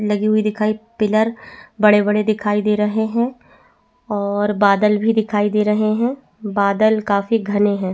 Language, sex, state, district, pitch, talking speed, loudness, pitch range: Hindi, female, Chhattisgarh, Bastar, 210 Hz, 160 wpm, -18 LUFS, 205-220 Hz